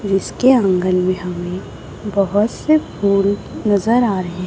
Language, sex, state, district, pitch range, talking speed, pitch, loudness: Hindi, female, Chhattisgarh, Raipur, 185-210 Hz, 135 wpm, 200 Hz, -17 LUFS